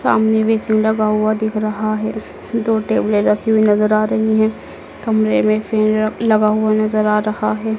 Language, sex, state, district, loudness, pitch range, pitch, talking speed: Hindi, female, Madhya Pradesh, Dhar, -16 LUFS, 215-220 Hz, 215 Hz, 185 wpm